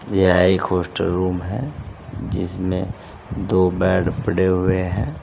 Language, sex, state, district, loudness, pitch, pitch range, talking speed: Hindi, male, Uttar Pradesh, Saharanpur, -20 LUFS, 95 Hz, 90-100 Hz, 125 wpm